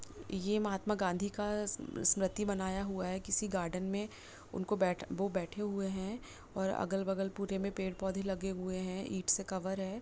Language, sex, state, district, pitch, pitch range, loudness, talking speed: Hindi, female, Bihar, Jamui, 195 Hz, 190-200 Hz, -36 LUFS, 175 wpm